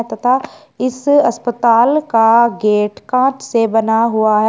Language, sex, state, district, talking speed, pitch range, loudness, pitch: Hindi, male, Uttar Pradesh, Shamli, 135 wpm, 225-255 Hz, -14 LUFS, 235 Hz